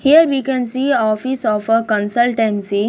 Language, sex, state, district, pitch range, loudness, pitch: English, female, Punjab, Kapurthala, 215-265 Hz, -16 LUFS, 230 Hz